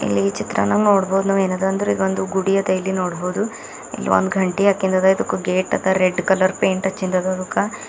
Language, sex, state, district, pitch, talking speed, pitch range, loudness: Kannada, male, Karnataka, Bidar, 190 Hz, 185 wpm, 185-195 Hz, -19 LUFS